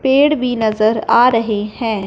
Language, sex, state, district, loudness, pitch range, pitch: Hindi, male, Punjab, Fazilka, -15 LUFS, 215-250 Hz, 230 Hz